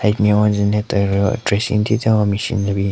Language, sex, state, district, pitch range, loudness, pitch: Rengma, male, Nagaland, Kohima, 100-105 Hz, -17 LUFS, 105 Hz